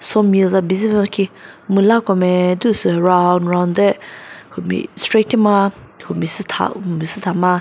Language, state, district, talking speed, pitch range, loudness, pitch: Chakhesang, Nagaland, Dimapur, 155 wpm, 180-205 Hz, -16 LUFS, 195 Hz